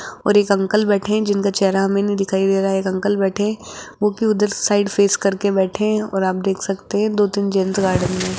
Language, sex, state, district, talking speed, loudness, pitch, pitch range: Hindi, female, Rajasthan, Jaipur, 250 wpm, -18 LUFS, 200 Hz, 195-205 Hz